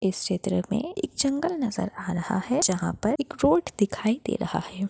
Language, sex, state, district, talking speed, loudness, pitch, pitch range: Hindi, female, Chhattisgarh, Bastar, 205 wpm, -26 LUFS, 220 Hz, 190-280 Hz